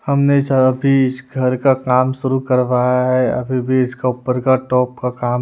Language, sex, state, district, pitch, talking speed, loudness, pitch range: Hindi, female, Bihar, West Champaran, 130 Hz, 200 wpm, -16 LUFS, 125-130 Hz